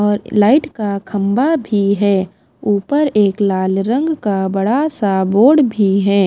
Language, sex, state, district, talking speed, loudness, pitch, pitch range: Hindi, female, Himachal Pradesh, Shimla, 155 wpm, -15 LUFS, 205 Hz, 195-250 Hz